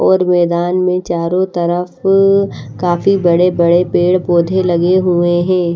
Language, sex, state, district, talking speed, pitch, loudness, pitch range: Hindi, female, Haryana, Charkhi Dadri, 135 wpm, 175 Hz, -13 LUFS, 175-185 Hz